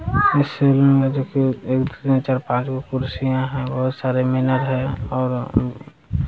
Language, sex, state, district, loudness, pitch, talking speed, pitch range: Hindi, male, Bihar, Jamui, -20 LUFS, 130 Hz, 145 wpm, 130-135 Hz